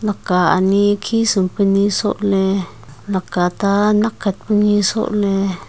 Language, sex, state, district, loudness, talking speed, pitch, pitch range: Wancho, female, Arunachal Pradesh, Longding, -17 LUFS, 125 wpm, 200 Hz, 190-210 Hz